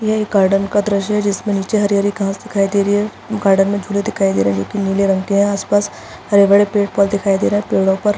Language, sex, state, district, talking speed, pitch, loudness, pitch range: Hindi, female, Chhattisgarh, Bastar, 310 wpm, 200 Hz, -16 LUFS, 195-205 Hz